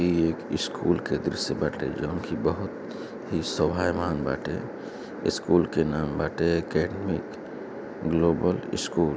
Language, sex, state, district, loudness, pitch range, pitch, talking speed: Hindi, male, Uttar Pradesh, Gorakhpur, -27 LUFS, 75-85 Hz, 80 Hz, 130 wpm